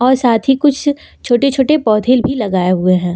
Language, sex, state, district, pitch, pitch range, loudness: Hindi, female, Uttar Pradesh, Lucknow, 250 Hz, 210-270 Hz, -13 LUFS